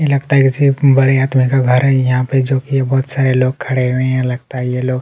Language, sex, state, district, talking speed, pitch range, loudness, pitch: Hindi, male, Chhattisgarh, Kabirdham, 285 wpm, 130-135 Hz, -14 LUFS, 130 Hz